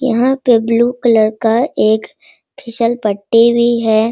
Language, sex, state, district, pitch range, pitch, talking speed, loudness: Hindi, female, Bihar, Sitamarhi, 225-240 Hz, 230 Hz, 160 wpm, -13 LUFS